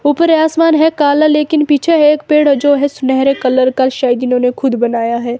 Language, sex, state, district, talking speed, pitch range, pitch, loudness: Hindi, female, Himachal Pradesh, Shimla, 210 wpm, 255-300 Hz, 285 Hz, -12 LUFS